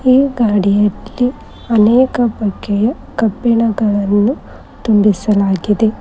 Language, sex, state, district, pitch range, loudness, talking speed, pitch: Kannada, female, Karnataka, Koppal, 205-240 Hz, -14 LUFS, 60 wpm, 215 Hz